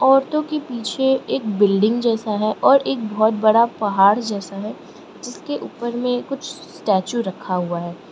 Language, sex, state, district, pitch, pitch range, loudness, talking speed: Hindi, female, Arunachal Pradesh, Lower Dibang Valley, 225 Hz, 205-265 Hz, -19 LUFS, 165 wpm